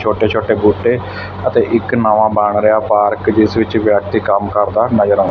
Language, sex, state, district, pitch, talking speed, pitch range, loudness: Punjabi, male, Punjab, Fazilka, 105 Hz, 180 wpm, 100-110 Hz, -13 LUFS